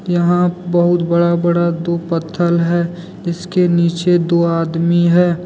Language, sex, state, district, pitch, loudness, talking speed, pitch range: Hindi, male, Jharkhand, Deoghar, 170 Hz, -15 LUFS, 130 wpm, 170-175 Hz